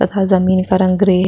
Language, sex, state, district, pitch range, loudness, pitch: Hindi, female, Chhattisgarh, Sukma, 185-190 Hz, -14 LUFS, 185 Hz